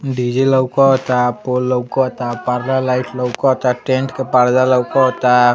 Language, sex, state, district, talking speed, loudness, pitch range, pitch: Bhojpuri, male, Uttar Pradesh, Ghazipur, 140 wpm, -15 LUFS, 125-130 Hz, 125 Hz